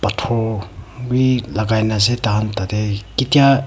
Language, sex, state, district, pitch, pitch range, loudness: Nagamese, female, Nagaland, Kohima, 110 Hz, 105-125 Hz, -18 LUFS